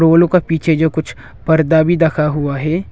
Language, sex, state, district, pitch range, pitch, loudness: Hindi, male, Arunachal Pradesh, Longding, 150-165 Hz, 160 Hz, -14 LUFS